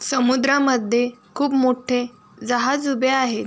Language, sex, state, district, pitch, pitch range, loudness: Marathi, female, Maharashtra, Sindhudurg, 255 Hz, 245-270 Hz, -20 LUFS